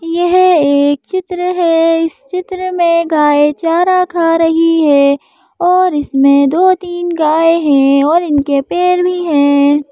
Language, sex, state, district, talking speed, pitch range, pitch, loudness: Hindi, female, Madhya Pradesh, Bhopal, 135 wpm, 290-360 Hz, 330 Hz, -11 LUFS